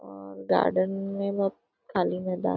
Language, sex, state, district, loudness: Hindi, female, Maharashtra, Nagpur, -28 LUFS